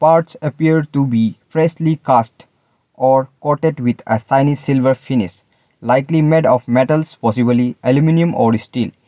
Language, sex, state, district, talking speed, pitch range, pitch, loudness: English, male, Mizoram, Aizawl, 140 wpm, 120-160 Hz, 135 Hz, -15 LUFS